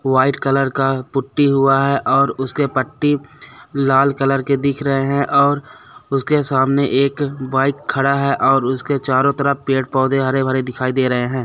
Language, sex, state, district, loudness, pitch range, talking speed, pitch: Hindi, male, Chhattisgarh, Raigarh, -17 LUFS, 130-140 Hz, 175 wpm, 135 Hz